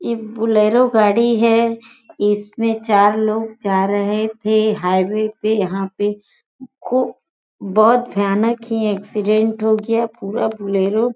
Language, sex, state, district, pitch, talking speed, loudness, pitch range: Hindi, female, Uttar Pradesh, Gorakhpur, 220 Hz, 130 wpm, -17 LUFS, 205-230 Hz